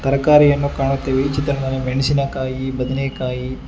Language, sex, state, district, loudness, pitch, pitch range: Kannada, male, Karnataka, Bangalore, -18 LUFS, 135 Hz, 130-140 Hz